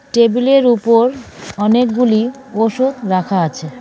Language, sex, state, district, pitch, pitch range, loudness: Bengali, female, West Bengal, Cooch Behar, 235 Hz, 210-250 Hz, -14 LUFS